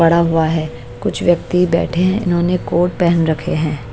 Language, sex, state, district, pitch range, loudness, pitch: Hindi, female, Bihar, Patna, 160-175 Hz, -16 LUFS, 170 Hz